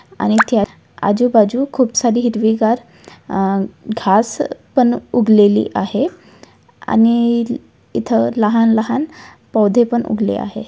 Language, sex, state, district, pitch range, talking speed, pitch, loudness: Marathi, female, Maharashtra, Aurangabad, 210-240 Hz, 100 wpm, 225 Hz, -15 LUFS